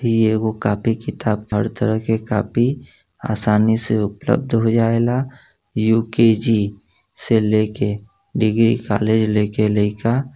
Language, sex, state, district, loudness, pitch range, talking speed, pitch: Bhojpuri, male, Uttar Pradesh, Gorakhpur, -19 LUFS, 105-115 Hz, 120 wpm, 110 Hz